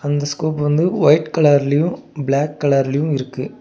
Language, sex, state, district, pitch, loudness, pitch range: Tamil, male, Tamil Nadu, Nilgiris, 145 Hz, -17 LUFS, 140-155 Hz